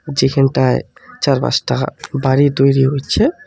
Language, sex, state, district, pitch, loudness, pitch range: Bengali, male, West Bengal, Alipurduar, 135 Hz, -15 LUFS, 135-140 Hz